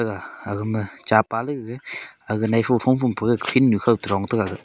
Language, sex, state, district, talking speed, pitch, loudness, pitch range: Wancho, male, Arunachal Pradesh, Longding, 205 wpm, 115 Hz, -22 LUFS, 105-120 Hz